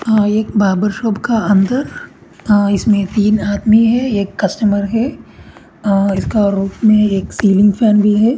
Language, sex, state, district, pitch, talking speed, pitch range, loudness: Hindi, male, Uttarakhand, Tehri Garhwal, 210 Hz, 170 wpm, 200-220 Hz, -14 LUFS